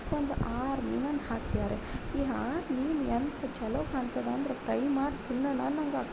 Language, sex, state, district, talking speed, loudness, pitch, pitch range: Kannada, female, Karnataka, Mysore, 155 wpm, -33 LUFS, 275 Hz, 260-290 Hz